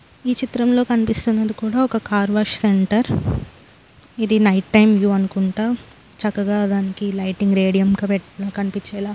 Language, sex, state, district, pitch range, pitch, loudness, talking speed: Telugu, female, Andhra Pradesh, Srikakulam, 200-220 Hz, 205 Hz, -19 LUFS, 125 wpm